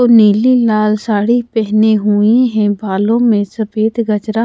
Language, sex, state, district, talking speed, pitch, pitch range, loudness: Hindi, female, Odisha, Khordha, 150 wpm, 215 Hz, 210-230 Hz, -12 LUFS